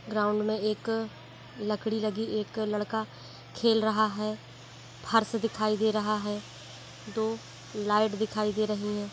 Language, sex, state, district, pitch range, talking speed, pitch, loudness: Hindi, female, Bihar, East Champaran, 210-220 Hz, 140 wpm, 215 Hz, -30 LUFS